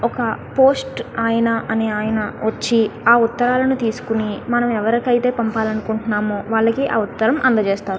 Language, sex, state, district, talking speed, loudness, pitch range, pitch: Telugu, female, Andhra Pradesh, Guntur, 65 wpm, -18 LUFS, 220-240 Hz, 225 Hz